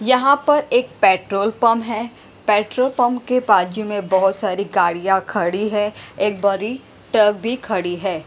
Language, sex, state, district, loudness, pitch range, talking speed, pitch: Hindi, female, Punjab, Pathankot, -18 LUFS, 195-240 Hz, 160 wpm, 210 Hz